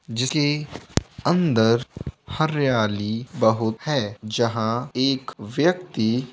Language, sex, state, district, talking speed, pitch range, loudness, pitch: Hindi, male, Bihar, Bhagalpur, 85 wpm, 110-145 Hz, -23 LUFS, 125 Hz